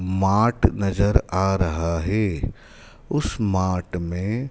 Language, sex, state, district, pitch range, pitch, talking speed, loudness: Hindi, male, Madhya Pradesh, Dhar, 90-105 Hz, 95 Hz, 105 wpm, -22 LUFS